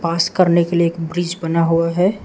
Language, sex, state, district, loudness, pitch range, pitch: Hindi, male, Arunachal Pradesh, Lower Dibang Valley, -17 LUFS, 165-175 Hz, 170 Hz